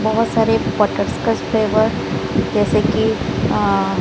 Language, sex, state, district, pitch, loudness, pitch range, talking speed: Hindi, male, Odisha, Sambalpur, 220 Hz, -17 LUFS, 215-225 Hz, 120 wpm